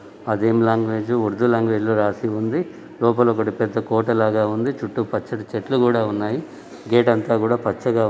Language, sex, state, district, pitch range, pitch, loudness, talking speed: Telugu, male, Telangana, Nalgonda, 110-120 Hz, 115 Hz, -20 LUFS, 165 wpm